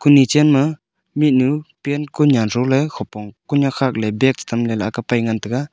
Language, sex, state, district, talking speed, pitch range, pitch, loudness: Wancho, male, Arunachal Pradesh, Longding, 180 wpm, 115-145 Hz, 135 Hz, -17 LUFS